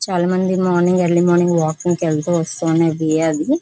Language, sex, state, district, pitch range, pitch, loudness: Telugu, female, Andhra Pradesh, Visakhapatnam, 160-180 Hz, 175 Hz, -17 LUFS